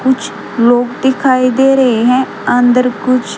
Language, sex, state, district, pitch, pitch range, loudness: Hindi, female, Haryana, Rohtak, 255 Hz, 245-260 Hz, -12 LUFS